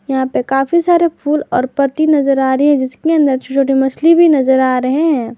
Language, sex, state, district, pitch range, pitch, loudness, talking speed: Hindi, female, Jharkhand, Garhwa, 260-310 Hz, 275 Hz, -13 LUFS, 235 wpm